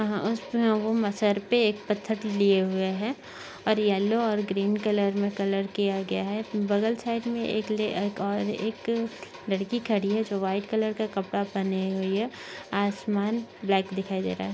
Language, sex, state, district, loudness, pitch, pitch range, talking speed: Hindi, female, Maharashtra, Nagpur, -27 LUFS, 205 Hz, 195-220 Hz, 175 wpm